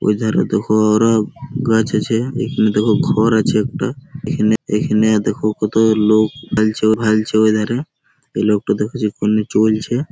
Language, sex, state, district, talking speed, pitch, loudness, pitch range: Bengali, male, West Bengal, Malda, 150 wpm, 110 Hz, -16 LUFS, 105-110 Hz